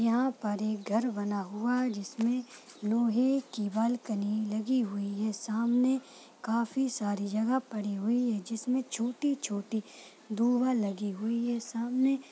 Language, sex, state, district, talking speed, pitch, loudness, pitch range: Hindi, female, Chhattisgarh, Rajnandgaon, 130 wpm, 230 Hz, -31 LUFS, 210-250 Hz